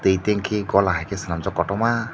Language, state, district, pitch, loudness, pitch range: Kokborok, Tripura, Dhalai, 100 Hz, -22 LUFS, 95-105 Hz